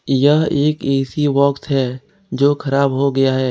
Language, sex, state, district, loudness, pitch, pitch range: Hindi, male, Jharkhand, Ranchi, -16 LUFS, 140 Hz, 135-145 Hz